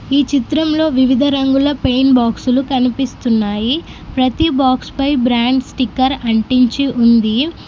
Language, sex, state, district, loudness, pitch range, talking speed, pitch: Telugu, female, Telangana, Mahabubabad, -14 LUFS, 245-275 Hz, 110 wpm, 260 Hz